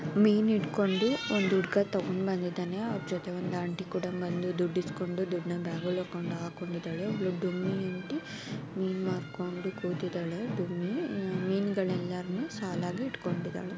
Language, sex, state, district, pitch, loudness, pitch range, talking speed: Kannada, female, Karnataka, Mysore, 180 Hz, -32 LUFS, 180-195 Hz, 120 wpm